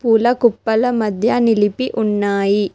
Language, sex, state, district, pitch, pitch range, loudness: Telugu, female, Telangana, Hyderabad, 225 Hz, 205-235 Hz, -16 LUFS